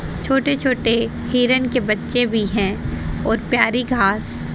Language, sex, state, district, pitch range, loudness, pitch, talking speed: Hindi, female, Haryana, Charkhi Dadri, 215-255 Hz, -19 LUFS, 245 Hz, 130 wpm